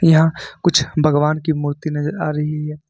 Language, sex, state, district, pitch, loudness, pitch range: Hindi, male, Jharkhand, Ranchi, 155 Hz, -18 LUFS, 150-160 Hz